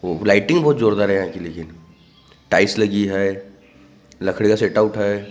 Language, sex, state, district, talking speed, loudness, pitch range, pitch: Hindi, male, Maharashtra, Gondia, 180 wpm, -18 LUFS, 95-105 Hz, 100 Hz